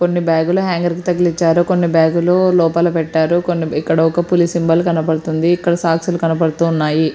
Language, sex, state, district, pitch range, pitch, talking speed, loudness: Telugu, female, Andhra Pradesh, Srikakulam, 165-175 Hz, 170 Hz, 175 wpm, -15 LUFS